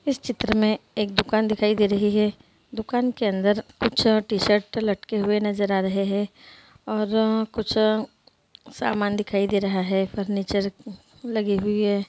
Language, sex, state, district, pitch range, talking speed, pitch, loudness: Hindi, female, Bihar, Muzaffarpur, 200-220 Hz, 155 wpm, 210 Hz, -23 LUFS